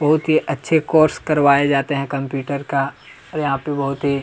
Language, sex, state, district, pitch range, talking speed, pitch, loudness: Hindi, male, Chhattisgarh, Kabirdham, 140-155 Hz, 200 wpm, 140 Hz, -18 LUFS